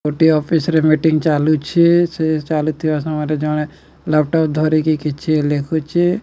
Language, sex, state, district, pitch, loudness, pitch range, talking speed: Odia, male, Odisha, Nuapada, 155 Hz, -16 LUFS, 150-160 Hz, 125 wpm